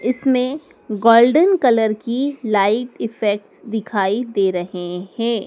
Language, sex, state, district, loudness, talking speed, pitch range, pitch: Hindi, female, Madhya Pradesh, Dhar, -18 LUFS, 110 wpm, 205-250 Hz, 225 Hz